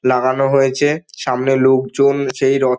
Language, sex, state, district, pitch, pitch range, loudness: Bengali, male, West Bengal, Dakshin Dinajpur, 135 Hz, 130-140 Hz, -15 LUFS